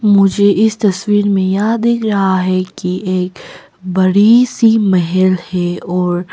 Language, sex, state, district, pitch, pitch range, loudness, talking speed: Hindi, female, Arunachal Pradesh, Papum Pare, 190 Hz, 185-210 Hz, -13 LUFS, 140 wpm